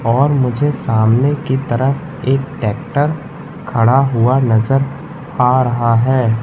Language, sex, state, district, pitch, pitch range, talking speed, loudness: Hindi, male, Madhya Pradesh, Katni, 135 Hz, 120-145 Hz, 120 wpm, -15 LUFS